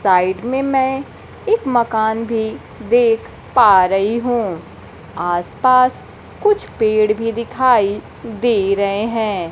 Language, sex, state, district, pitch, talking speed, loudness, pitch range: Hindi, female, Bihar, Kaimur, 220 Hz, 115 wpm, -16 LUFS, 200-255 Hz